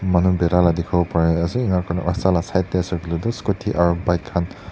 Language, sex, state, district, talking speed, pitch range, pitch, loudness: Nagamese, male, Nagaland, Dimapur, 240 wpm, 85-95 Hz, 90 Hz, -20 LUFS